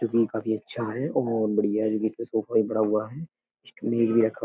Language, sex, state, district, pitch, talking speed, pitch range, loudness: Hindi, male, Uttar Pradesh, Etah, 110 Hz, 280 wpm, 110-115 Hz, -26 LUFS